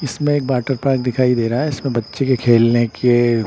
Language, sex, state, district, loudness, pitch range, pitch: Hindi, male, Bihar, Patna, -17 LUFS, 120-135 Hz, 125 Hz